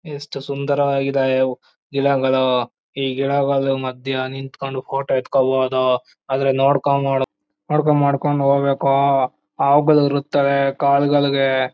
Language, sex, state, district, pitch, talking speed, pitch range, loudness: Kannada, male, Karnataka, Chamarajanagar, 135 Hz, 85 wpm, 130-140 Hz, -19 LUFS